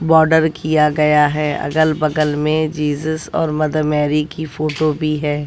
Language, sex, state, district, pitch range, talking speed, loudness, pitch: Hindi, female, Bihar, West Champaran, 150-155 Hz, 165 wpm, -17 LUFS, 155 Hz